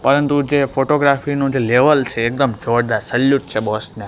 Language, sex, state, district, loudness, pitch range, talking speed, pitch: Gujarati, male, Gujarat, Gandhinagar, -16 LUFS, 115-140 Hz, 190 wpm, 135 Hz